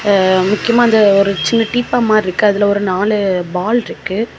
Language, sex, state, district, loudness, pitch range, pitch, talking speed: Tamil, female, Tamil Nadu, Kanyakumari, -14 LUFS, 195-225 Hz, 205 Hz, 175 wpm